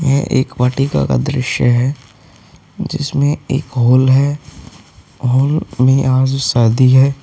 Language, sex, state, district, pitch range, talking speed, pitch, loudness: Hindi, male, Uttar Pradesh, Hamirpur, 125-140 Hz, 125 wpm, 130 Hz, -14 LUFS